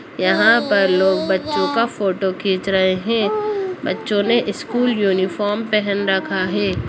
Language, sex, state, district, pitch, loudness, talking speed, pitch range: Kumaoni, female, Uttarakhand, Uttarkashi, 200 Hz, -18 LUFS, 140 wpm, 190-230 Hz